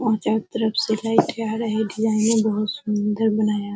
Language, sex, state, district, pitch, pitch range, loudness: Hindi, female, Uttar Pradesh, Hamirpur, 220 Hz, 215-225 Hz, -22 LUFS